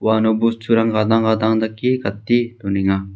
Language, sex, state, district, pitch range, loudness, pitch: Garo, male, Meghalaya, South Garo Hills, 105-115 Hz, -18 LUFS, 110 Hz